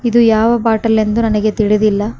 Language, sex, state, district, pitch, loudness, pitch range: Kannada, female, Karnataka, Koppal, 220 Hz, -13 LUFS, 215-230 Hz